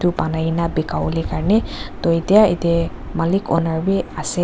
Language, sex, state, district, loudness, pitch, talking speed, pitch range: Nagamese, female, Nagaland, Dimapur, -19 LUFS, 170 Hz, 160 wpm, 160-185 Hz